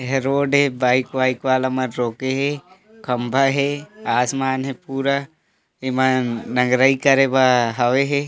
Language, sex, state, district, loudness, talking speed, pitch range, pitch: Chhattisgarhi, male, Chhattisgarh, Korba, -19 LUFS, 150 wpm, 130-140 Hz, 135 Hz